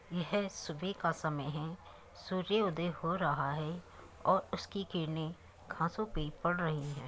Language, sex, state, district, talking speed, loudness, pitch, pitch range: Hindi, male, Uttar Pradesh, Muzaffarnagar, 150 wpm, -36 LUFS, 165 Hz, 155-185 Hz